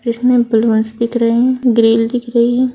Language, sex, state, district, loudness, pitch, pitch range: Hindi, female, Uttar Pradesh, Saharanpur, -13 LUFS, 235 Hz, 230-245 Hz